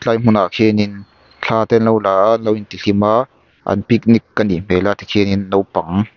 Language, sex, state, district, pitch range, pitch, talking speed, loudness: Mizo, male, Mizoram, Aizawl, 100-110 Hz, 105 Hz, 215 wpm, -15 LUFS